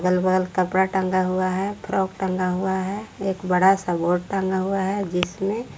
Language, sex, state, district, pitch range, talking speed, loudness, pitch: Hindi, female, Jharkhand, Palamu, 185-195 Hz, 165 wpm, -23 LUFS, 190 Hz